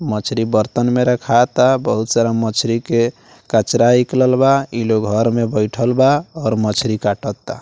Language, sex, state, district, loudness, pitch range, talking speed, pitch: Bhojpuri, male, Bihar, Muzaffarpur, -16 LUFS, 110-125 Hz, 155 wpm, 115 Hz